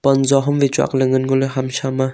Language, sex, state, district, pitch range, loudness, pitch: Wancho, male, Arunachal Pradesh, Longding, 130-135 Hz, -17 LUFS, 135 Hz